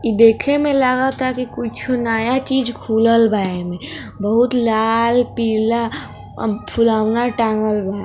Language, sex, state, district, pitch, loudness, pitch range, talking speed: Hindi, female, Bihar, East Champaran, 230 Hz, -17 LUFS, 220-250 Hz, 140 wpm